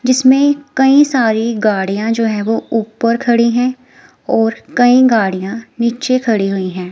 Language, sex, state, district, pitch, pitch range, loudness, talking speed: Hindi, female, Himachal Pradesh, Shimla, 230 Hz, 220-255 Hz, -14 LUFS, 145 wpm